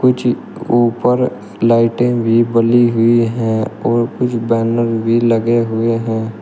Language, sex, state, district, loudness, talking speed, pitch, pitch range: Hindi, male, Uttar Pradesh, Shamli, -15 LUFS, 130 wpm, 115 Hz, 115-120 Hz